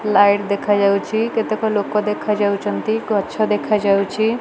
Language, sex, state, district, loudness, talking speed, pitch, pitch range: Odia, female, Odisha, Malkangiri, -18 LUFS, 95 wpm, 210 Hz, 200-220 Hz